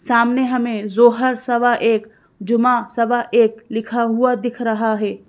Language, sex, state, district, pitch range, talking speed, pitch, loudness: Hindi, female, Madhya Pradesh, Bhopal, 225-245 Hz, 145 wpm, 235 Hz, -17 LUFS